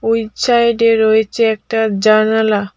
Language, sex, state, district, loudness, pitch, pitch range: Bengali, female, Tripura, Dhalai, -13 LUFS, 220 Hz, 215-225 Hz